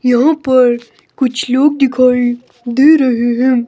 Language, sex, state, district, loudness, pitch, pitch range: Hindi, male, Himachal Pradesh, Shimla, -12 LUFS, 255 Hz, 245-270 Hz